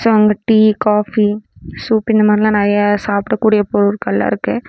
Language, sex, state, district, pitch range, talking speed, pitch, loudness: Tamil, female, Tamil Nadu, Namakkal, 205-220 Hz, 140 wpm, 210 Hz, -14 LUFS